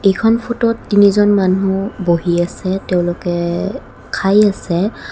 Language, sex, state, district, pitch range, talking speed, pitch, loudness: Assamese, female, Assam, Kamrup Metropolitan, 175-205 Hz, 115 wpm, 195 Hz, -15 LUFS